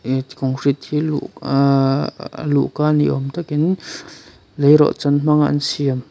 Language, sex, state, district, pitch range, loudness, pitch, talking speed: Mizo, male, Mizoram, Aizawl, 135-150 Hz, -18 LUFS, 145 Hz, 110 wpm